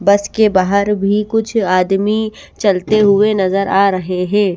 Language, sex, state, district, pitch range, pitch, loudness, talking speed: Hindi, female, Bihar, West Champaran, 190-215 Hz, 200 Hz, -14 LUFS, 160 wpm